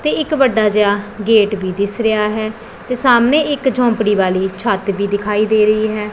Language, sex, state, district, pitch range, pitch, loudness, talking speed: Punjabi, female, Punjab, Pathankot, 205-240 Hz, 215 Hz, -15 LUFS, 195 wpm